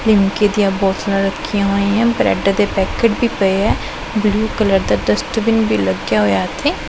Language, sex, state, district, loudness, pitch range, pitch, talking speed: Punjabi, female, Punjab, Pathankot, -16 LUFS, 190-215 Hz, 200 Hz, 175 wpm